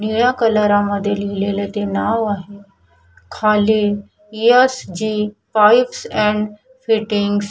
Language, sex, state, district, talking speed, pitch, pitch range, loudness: Marathi, female, Maharashtra, Chandrapur, 105 wpm, 210 Hz, 200-220 Hz, -17 LUFS